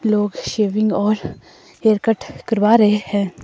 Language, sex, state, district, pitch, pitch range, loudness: Hindi, female, Himachal Pradesh, Shimla, 215 Hz, 205-220 Hz, -18 LUFS